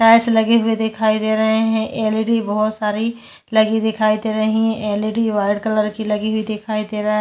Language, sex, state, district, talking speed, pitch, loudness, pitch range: Hindi, female, Chhattisgarh, Jashpur, 210 wpm, 220 Hz, -18 LUFS, 215-220 Hz